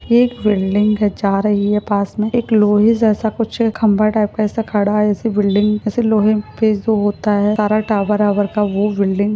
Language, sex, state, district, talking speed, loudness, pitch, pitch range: Hindi, female, Jharkhand, Jamtara, 190 wpm, -16 LUFS, 210 Hz, 205-215 Hz